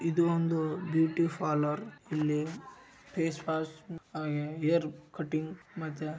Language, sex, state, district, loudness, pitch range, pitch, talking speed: Kannada, male, Karnataka, Raichur, -32 LUFS, 155-170 Hz, 160 Hz, 95 wpm